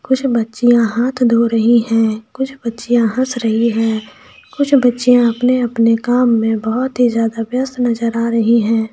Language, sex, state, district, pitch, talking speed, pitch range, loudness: Hindi, female, Jharkhand, Sahebganj, 235 Hz, 170 wpm, 225-250 Hz, -15 LUFS